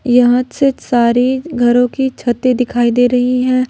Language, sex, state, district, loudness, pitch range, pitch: Hindi, female, Jharkhand, Ranchi, -13 LUFS, 245-255 Hz, 250 Hz